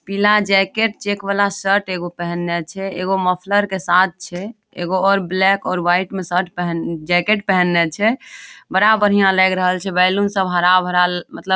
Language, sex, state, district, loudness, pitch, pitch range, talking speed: Maithili, female, Bihar, Madhepura, -17 LUFS, 190 Hz, 180-200 Hz, 180 wpm